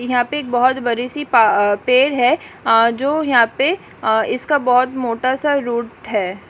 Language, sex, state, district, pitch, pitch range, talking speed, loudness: Hindi, female, Uttarakhand, Tehri Garhwal, 245 Hz, 230-270 Hz, 185 wpm, -17 LUFS